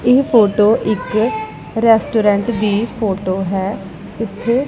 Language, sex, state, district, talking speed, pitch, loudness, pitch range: Punjabi, female, Punjab, Pathankot, 105 wpm, 215 Hz, -16 LUFS, 200-230 Hz